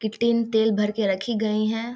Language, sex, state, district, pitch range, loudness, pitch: Maithili, female, Bihar, Samastipur, 215-230 Hz, -23 LUFS, 220 Hz